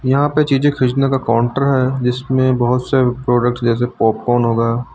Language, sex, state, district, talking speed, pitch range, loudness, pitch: Hindi, male, Uttar Pradesh, Lucknow, 170 wpm, 120-135 Hz, -16 LUFS, 125 Hz